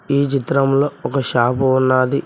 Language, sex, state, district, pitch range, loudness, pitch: Telugu, male, Telangana, Mahabubabad, 130-140 Hz, -17 LUFS, 135 Hz